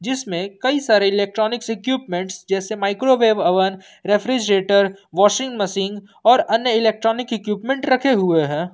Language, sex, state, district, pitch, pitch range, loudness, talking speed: Hindi, male, Jharkhand, Ranchi, 205 Hz, 195-235 Hz, -19 LUFS, 125 wpm